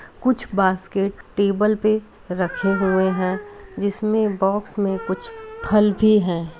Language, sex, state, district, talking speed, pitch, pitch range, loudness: Hindi, female, Uttar Pradesh, Deoria, 125 wpm, 200 Hz, 190-215 Hz, -21 LUFS